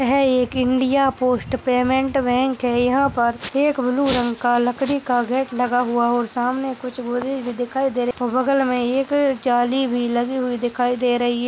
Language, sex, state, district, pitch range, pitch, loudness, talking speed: Hindi, male, Bihar, Darbhanga, 245-265 Hz, 250 Hz, -20 LUFS, 190 wpm